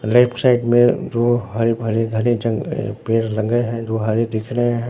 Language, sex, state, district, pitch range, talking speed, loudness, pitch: Hindi, male, Bihar, Katihar, 110-120 Hz, 195 wpm, -18 LUFS, 115 Hz